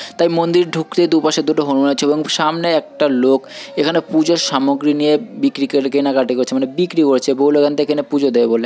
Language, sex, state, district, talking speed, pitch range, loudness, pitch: Bengali, male, West Bengal, Purulia, 210 wpm, 140-160 Hz, -15 LUFS, 150 Hz